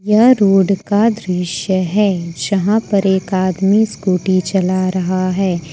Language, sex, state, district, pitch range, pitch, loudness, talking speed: Hindi, female, Jharkhand, Ranchi, 185-205 Hz, 190 Hz, -15 LUFS, 135 wpm